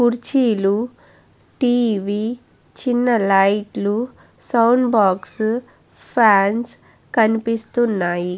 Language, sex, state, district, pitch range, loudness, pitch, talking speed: Telugu, female, Andhra Pradesh, Guntur, 205-240 Hz, -18 LUFS, 225 Hz, 55 wpm